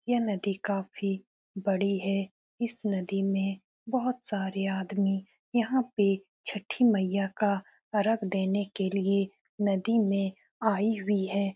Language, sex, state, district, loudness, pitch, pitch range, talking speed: Hindi, female, Bihar, Saran, -30 LUFS, 200 Hz, 195-215 Hz, 130 wpm